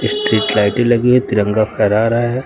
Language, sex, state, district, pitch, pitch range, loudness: Hindi, male, Uttar Pradesh, Lucknow, 115 Hz, 105-125 Hz, -14 LUFS